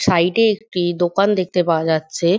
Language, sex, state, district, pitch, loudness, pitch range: Bengali, female, West Bengal, Dakshin Dinajpur, 180 Hz, -18 LUFS, 170-195 Hz